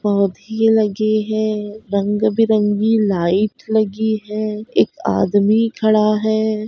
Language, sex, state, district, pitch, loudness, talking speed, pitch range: Hindi, female, Uttar Pradesh, Budaun, 215 Hz, -17 LUFS, 110 wpm, 210-220 Hz